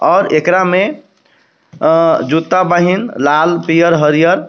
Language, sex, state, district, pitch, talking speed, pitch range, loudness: Bhojpuri, male, Jharkhand, Palamu, 170 Hz, 105 wpm, 160-180 Hz, -12 LUFS